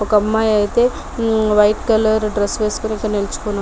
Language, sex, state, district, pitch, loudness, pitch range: Telugu, female, Telangana, Nalgonda, 215 Hz, -17 LUFS, 210-220 Hz